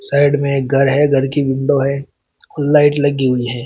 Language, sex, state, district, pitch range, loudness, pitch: Hindi, male, Uttar Pradesh, Shamli, 135-145 Hz, -15 LUFS, 140 Hz